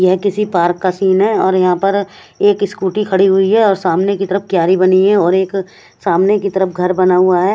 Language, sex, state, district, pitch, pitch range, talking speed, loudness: Hindi, female, Odisha, Khordha, 190 Hz, 185-200 Hz, 255 wpm, -13 LUFS